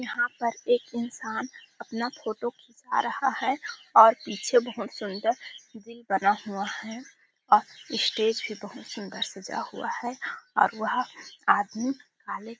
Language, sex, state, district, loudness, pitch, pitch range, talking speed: Hindi, female, Chhattisgarh, Balrampur, -27 LUFS, 235 Hz, 220-245 Hz, 150 wpm